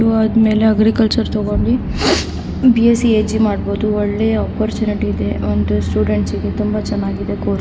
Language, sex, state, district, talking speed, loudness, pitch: Kannada, female, Karnataka, Raichur, 140 wpm, -16 LUFS, 210 Hz